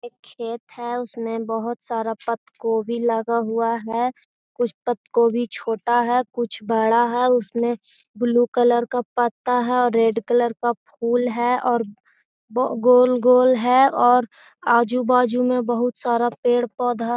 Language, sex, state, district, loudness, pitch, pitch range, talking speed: Magahi, female, Bihar, Gaya, -20 LUFS, 240 Hz, 230-245 Hz, 140 wpm